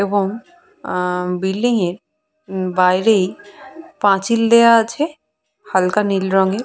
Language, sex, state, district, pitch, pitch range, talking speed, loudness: Bengali, female, West Bengal, Purulia, 205 Hz, 190-235 Hz, 100 wpm, -17 LUFS